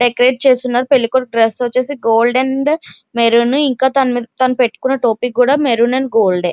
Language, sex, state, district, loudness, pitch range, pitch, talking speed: Telugu, female, Andhra Pradesh, Visakhapatnam, -14 LUFS, 235-265 Hz, 250 Hz, 145 wpm